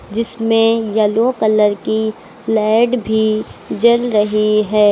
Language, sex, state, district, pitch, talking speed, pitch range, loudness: Hindi, female, Uttar Pradesh, Lucknow, 220 Hz, 110 wpm, 215-230 Hz, -15 LUFS